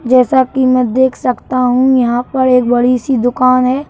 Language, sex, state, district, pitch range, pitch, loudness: Hindi, male, Madhya Pradesh, Bhopal, 250-260 Hz, 255 Hz, -12 LUFS